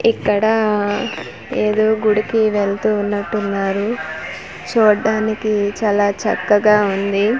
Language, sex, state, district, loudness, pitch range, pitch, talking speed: Telugu, female, Andhra Pradesh, Manyam, -17 LUFS, 205-220 Hz, 210 Hz, 95 wpm